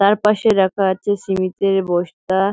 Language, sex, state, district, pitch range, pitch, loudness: Bengali, female, West Bengal, Malda, 190-205 Hz, 195 Hz, -18 LUFS